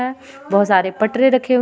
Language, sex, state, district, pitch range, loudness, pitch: Hindi, female, Jharkhand, Ranchi, 200-260 Hz, -16 LUFS, 250 Hz